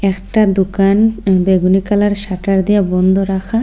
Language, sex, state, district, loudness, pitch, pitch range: Bengali, female, Assam, Hailakandi, -13 LUFS, 195 Hz, 190-205 Hz